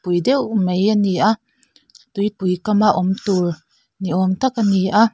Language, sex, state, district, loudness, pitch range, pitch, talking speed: Mizo, female, Mizoram, Aizawl, -18 LUFS, 185-225 Hz, 205 Hz, 200 wpm